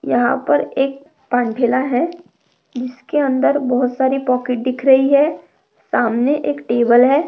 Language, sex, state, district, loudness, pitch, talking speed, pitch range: Hindi, female, Maharashtra, Chandrapur, -17 LUFS, 260 Hz, 140 wpm, 250-285 Hz